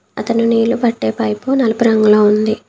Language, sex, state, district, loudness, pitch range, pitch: Telugu, female, Telangana, Komaram Bheem, -14 LUFS, 215-235 Hz, 225 Hz